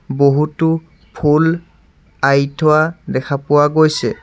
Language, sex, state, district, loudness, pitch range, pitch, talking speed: Assamese, male, Assam, Sonitpur, -15 LUFS, 140-160 Hz, 150 Hz, 100 wpm